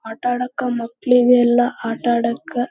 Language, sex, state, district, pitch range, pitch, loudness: Kannada, female, Karnataka, Belgaum, 230-245 Hz, 245 Hz, -18 LUFS